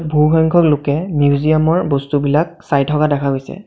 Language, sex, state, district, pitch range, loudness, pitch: Assamese, male, Assam, Sonitpur, 145-160 Hz, -15 LUFS, 150 Hz